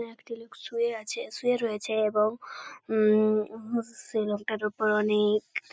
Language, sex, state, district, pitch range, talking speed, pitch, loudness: Bengali, female, West Bengal, Paschim Medinipur, 215-230 Hz, 145 wpm, 220 Hz, -28 LUFS